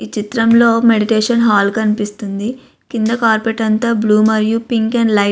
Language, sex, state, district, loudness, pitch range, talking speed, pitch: Telugu, female, Andhra Pradesh, Visakhapatnam, -14 LUFS, 215-230 Hz, 160 wpm, 220 Hz